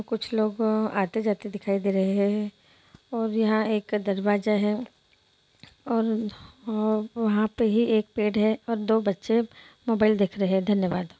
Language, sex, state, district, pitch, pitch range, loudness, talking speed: Hindi, female, Bihar, Muzaffarpur, 215 Hz, 205-225 Hz, -25 LUFS, 150 wpm